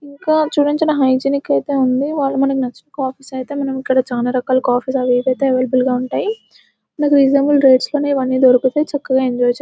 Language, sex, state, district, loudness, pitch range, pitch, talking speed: Telugu, female, Telangana, Nalgonda, -16 LUFS, 255-285 Hz, 265 Hz, 180 wpm